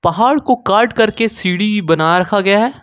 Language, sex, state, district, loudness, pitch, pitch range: Hindi, male, Jharkhand, Ranchi, -13 LUFS, 210 Hz, 185-230 Hz